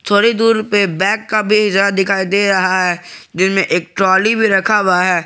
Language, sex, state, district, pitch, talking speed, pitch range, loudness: Hindi, male, Jharkhand, Garhwa, 195 Hz, 195 wpm, 185-210 Hz, -13 LUFS